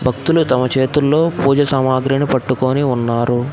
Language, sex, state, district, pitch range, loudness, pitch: Telugu, male, Telangana, Hyderabad, 130-145 Hz, -15 LUFS, 130 Hz